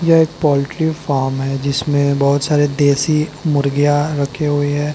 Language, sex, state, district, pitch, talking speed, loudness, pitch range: Hindi, male, Uttar Pradesh, Lalitpur, 145 Hz, 160 wpm, -16 LUFS, 140-150 Hz